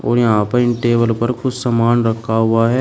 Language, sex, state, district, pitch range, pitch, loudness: Hindi, male, Uttar Pradesh, Shamli, 115-120 Hz, 115 Hz, -16 LUFS